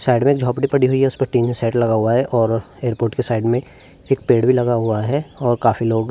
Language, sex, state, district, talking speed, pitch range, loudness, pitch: Hindi, male, Uttar Pradesh, Varanasi, 285 wpm, 115-130 Hz, -18 LUFS, 120 Hz